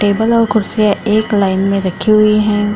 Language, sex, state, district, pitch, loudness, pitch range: Hindi, female, Bihar, Kishanganj, 210 Hz, -13 LUFS, 200-215 Hz